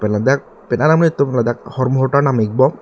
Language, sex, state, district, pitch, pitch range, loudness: Karbi, male, Assam, Karbi Anglong, 130 Hz, 120-140 Hz, -16 LUFS